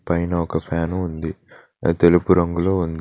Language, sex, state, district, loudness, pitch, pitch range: Telugu, male, Telangana, Mahabubabad, -20 LUFS, 85 Hz, 80-90 Hz